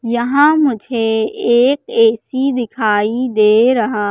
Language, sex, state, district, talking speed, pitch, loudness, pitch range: Hindi, female, Madhya Pradesh, Katni, 100 wpm, 240 Hz, -14 LUFS, 220-270 Hz